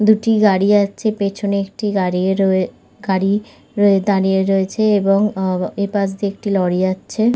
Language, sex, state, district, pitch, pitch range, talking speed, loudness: Bengali, female, West Bengal, Jhargram, 200 Hz, 190-210 Hz, 145 wpm, -17 LUFS